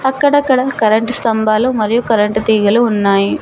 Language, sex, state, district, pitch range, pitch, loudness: Telugu, female, Telangana, Mahabubabad, 215-250 Hz, 225 Hz, -13 LUFS